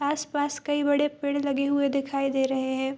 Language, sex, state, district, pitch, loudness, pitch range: Hindi, female, Bihar, Madhepura, 280 Hz, -26 LUFS, 275-290 Hz